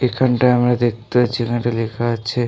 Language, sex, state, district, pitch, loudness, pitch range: Bengali, male, West Bengal, North 24 Parganas, 120 Hz, -18 LUFS, 120-125 Hz